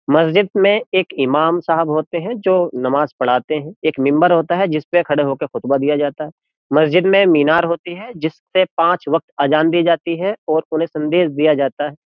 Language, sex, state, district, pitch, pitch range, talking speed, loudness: Hindi, male, Uttar Pradesh, Jyotiba Phule Nagar, 160 Hz, 150-175 Hz, 205 wpm, -16 LUFS